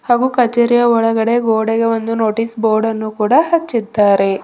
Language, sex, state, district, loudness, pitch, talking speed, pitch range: Kannada, female, Karnataka, Bidar, -14 LUFS, 225 Hz, 135 wpm, 220-240 Hz